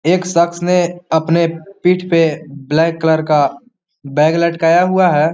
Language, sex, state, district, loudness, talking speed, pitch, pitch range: Hindi, male, Bihar, Muzaffarpur, -14 LUFS, 145 wpm, 170 Hz, 160-180 Hz